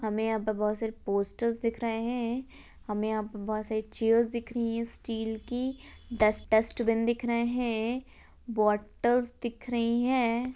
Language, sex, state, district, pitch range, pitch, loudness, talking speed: Hindi, female, Rajasthan, Churu, 220-240 Hz, 230 Hz, -30 LUFS, 165 wpm